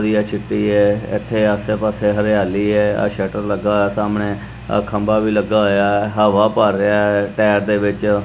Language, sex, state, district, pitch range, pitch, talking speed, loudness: Punjabi, male, Punjab, Kapurthala, 100-105 Hz, 105 Hz, 175 wpm, -17 LUFS